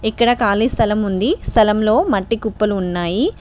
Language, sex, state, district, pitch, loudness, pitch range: Telugu, female, Telangana, Mahabubabad, 215 Hz, -17 LUFS, 205-230 Hz